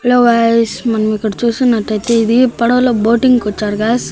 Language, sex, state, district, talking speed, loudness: Telugu, male, Andhra Pradesh, Annamaya, 175 wpm, -13 LUFS